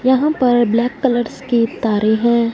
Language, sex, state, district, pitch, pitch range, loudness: Hindi, female, Punjab, Fazilka, 240 Hz, 230-255 Hz, -16 LUFS